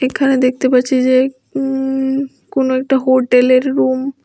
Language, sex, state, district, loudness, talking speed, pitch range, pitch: Bengali, female, Tripura, West Tripura, -14 LUFS, 140 wpm, 255-270 Hz, 260 Hz